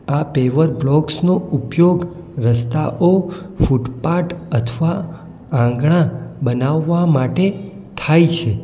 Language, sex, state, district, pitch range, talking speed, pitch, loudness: Gujarati, male, Gujarat, Valsad, 135-175 Hz, 90 wpm, 160 Hz, -17 LUFS